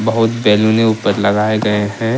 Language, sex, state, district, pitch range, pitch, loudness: Hindi, male, Jharkhand, Deoghar, 105-115 Hz, 110 Hz, -14 LUFS